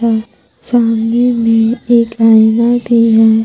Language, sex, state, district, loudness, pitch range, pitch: Hindi, female, Jharkhand, Deoghar, -11 LUFS, 225-235 Hz, 230 Hz